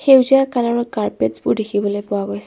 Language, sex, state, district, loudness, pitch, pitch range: Assamese, female, Assam, Kamrup Metropolitan, -17 LUFS, 210 Hz, 185-245 Hz